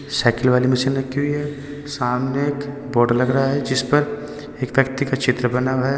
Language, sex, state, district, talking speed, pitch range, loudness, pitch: Hindi, male, Uttar Pradesh, Saharanpur, 200 wpm, 130-145 Hz, -20 LUFS, 135 Hz